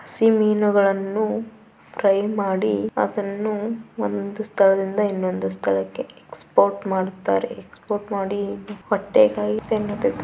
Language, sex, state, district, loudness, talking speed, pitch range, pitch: Kannada, female, Karnataka, Bijapur, -22 LUFS, 75 wpm, 190-210 Hz, 200 Hz